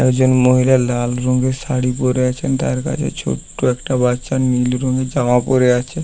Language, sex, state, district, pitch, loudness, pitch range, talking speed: Bengali, male, West Bengal, Paschim Medinipur, 125 Hz, -17 LUFS, 125-130 Hz, 180 wpm